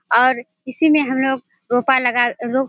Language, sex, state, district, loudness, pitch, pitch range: Hindi, female, Bihar, Kishanganj, -17 LUFS, 260 Hz, 245-265 Hz